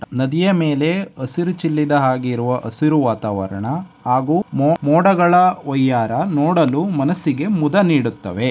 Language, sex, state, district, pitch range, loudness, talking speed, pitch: Kannada, male, Karnataka, Dharwad, 125-170 Hz, -17 LUFS, 90 wpm, 150 Hz